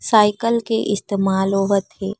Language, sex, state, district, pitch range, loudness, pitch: Chhattisgarhi, female, Chhattisgarh, Rajnandgaon, 195-220 Hz, -19 LUFS, 205 Hz